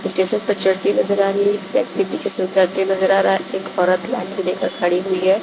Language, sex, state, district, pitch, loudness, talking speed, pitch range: Hindi, female, Bihar, West Champaran, 190 Hz, -18 LUFS, 255 wpm, 185-195 Hz